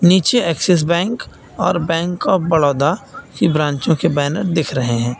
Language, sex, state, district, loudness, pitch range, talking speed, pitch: Hindi, male, Uttar Pradesh, Lucknow, -17 LUFS, 145-180 Hz, 160 wpm, 165 Hz